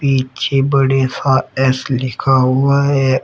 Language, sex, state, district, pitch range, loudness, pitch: Hindi, female, Uttar Pradesh, Shamli, 130-135 Hz, -15 LUFS, 135 Hz